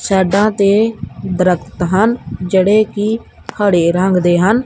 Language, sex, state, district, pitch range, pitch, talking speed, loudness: Punjabi, male, Punjab, Kapurthala, 180-215 Hz, 195 Hz, 130 wpm, -14 LUFS